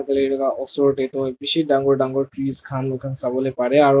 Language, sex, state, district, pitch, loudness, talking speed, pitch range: Nagamese, male, Nagaland, Dimapur, 135 Hz, -19 LUFS, 195 wpm, 130-140 Hz